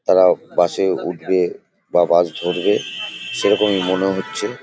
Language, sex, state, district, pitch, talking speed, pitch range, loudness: Bengali, male, West Bengal, Paschim Medinipur, 90 Hz, 130 wpm, 90-95 Hz, -18 LUFS